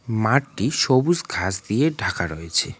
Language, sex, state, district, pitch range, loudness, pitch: Bengali, male, West Bengal, Cooch Behar, 95-140 Hz, -21 LUFS, 120 Hz